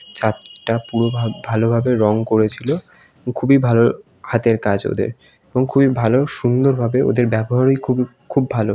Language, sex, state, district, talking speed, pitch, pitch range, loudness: Bengali, male, West Bengal, North 24 Parganas, 135 wpm, 120 Hz, 115-130 Hz, -18 LUFS